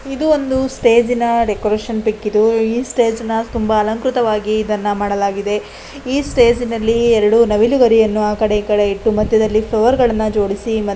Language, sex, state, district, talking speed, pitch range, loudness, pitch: Kannada, female, Karnataka, Dakshina Kannada, 125 wpm, 215-235 Hz, -15 LUFS, 225 Hz